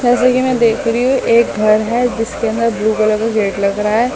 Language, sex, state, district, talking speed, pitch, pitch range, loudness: Hindi, female, Delhi, New Delhi, 245 wpm, 225 Hz, 215-245 Hz, -14 LUFS